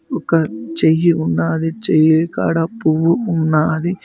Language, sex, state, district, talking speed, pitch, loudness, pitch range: Telugu, male, Telangana, Mahabubabad, 105 wpm, 160 Hz, -16 LUFS, 155-165 Hz